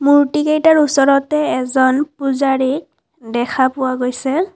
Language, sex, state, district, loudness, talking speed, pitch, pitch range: Assamese, female, Assam, Kamrup Metropolitan, -15 LUFS, 105 wpm, 275 Hz, 260-300 Hz